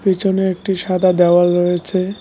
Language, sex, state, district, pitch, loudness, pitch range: Bengali, male, West Bengal, Cooch Behar, 185 Hz, -15 LUFS, 175-190 Hz